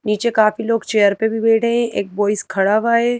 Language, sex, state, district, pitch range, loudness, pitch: Hindi, female, Madhya Pradesh, Bhopal, 210-235 Hz, -17 LUFS, 220 Hz